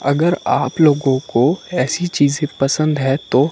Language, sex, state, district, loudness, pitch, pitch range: Hindi, male, Himachal Pradesh, Shimla, -16 LUFS, 145 Hz, 135-165 Hz